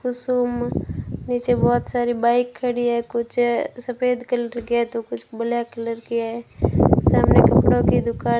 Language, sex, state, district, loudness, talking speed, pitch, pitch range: Hindi, female, Rajasthan, Bikaner, -21 LUFS, 165 wpm, 235 Hz, 230-245 Hz